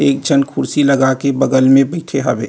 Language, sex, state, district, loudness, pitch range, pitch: Chhattisgarhi, male, Chhattisgarh, Rajnandgaon, -14 LUFS, 135-140 Hz, 135 Hz